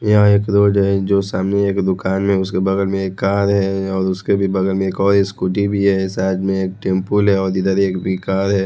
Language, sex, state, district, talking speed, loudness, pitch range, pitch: Hindi, male, Odisha, Khordha, 250 wpm, -17 LUFS, 95-100 Hz, 95 Hz